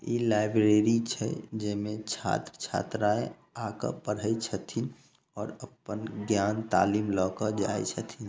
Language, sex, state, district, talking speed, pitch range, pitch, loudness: Maithili, male, Bihar, Samastipur, 125 wpm, 105-110 Hz, 105 Hz, -30 LUFS